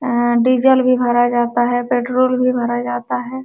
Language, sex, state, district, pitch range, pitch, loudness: Hindi, female, Uttar Pradesh, Jalaun, 240-255 Hz, 245 Hz, -16 LUFS